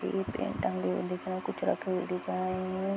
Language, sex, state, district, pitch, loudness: Hindi, female, Jharkhand, Sahebganj, 180 Hz, -33 LUFS